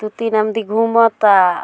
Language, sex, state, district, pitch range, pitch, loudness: Bhojpuri, female, Bihar, Muzaffarpur, 210-230 Hz, 220 Hz, -14 LUFS